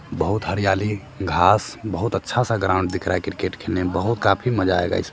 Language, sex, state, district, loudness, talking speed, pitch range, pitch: Hindi, male, Bihar, Sitamarhi, -21 LUFS, 210 wpm, 90-110 Hz, 95 Hz